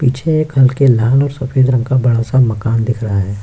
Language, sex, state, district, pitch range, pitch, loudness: Hindi, male, Bihar, Kishanganj, 115-135 Hz, 130 Hz, -13 LUFS